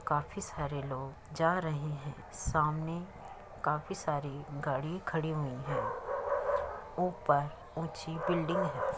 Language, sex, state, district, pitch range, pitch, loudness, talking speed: Hindi, female, Uttar Pradesh, Muzaffarnagar, 145-170 Hz, 155 Hz, -35 LUFS, 115 wpm